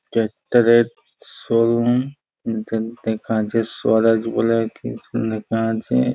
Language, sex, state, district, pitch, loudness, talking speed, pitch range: Bengali, male, West Bengal, Jhargram, 115 Hz, -20 LUFS, 70 wpm, 110-115 Hz